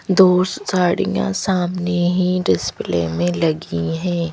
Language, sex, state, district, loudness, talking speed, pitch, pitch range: Hindi, female, Madhya Pradesh, Bhopal, -18 LUFS, 110 wpm, 175 Hz, 155-180 Hz